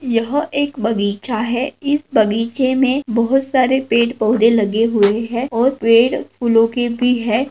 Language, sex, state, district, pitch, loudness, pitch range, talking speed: Hindi, female, Maharashtra, Nagpur, 235 Hz, -16 LUFS, 225-260 Hz, 160 wpm